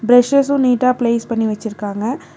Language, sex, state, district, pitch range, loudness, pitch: Tamil, female, Tamil Nadu, Nilgiris, 220-255 Hz, -16 LUFS, 240 Hz